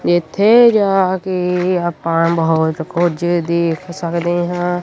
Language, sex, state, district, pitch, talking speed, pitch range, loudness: Punjabi, male, Punjab, Kapurthala, 175 Hz, 125 wpm, 170-180 Hz, -15 LUFS